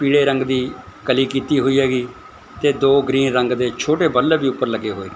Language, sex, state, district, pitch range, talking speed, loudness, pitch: Punjabi, male, Punjab, Fazilka, 125-140 Hz, 210 wpm, -18 LUFS, 135 Hz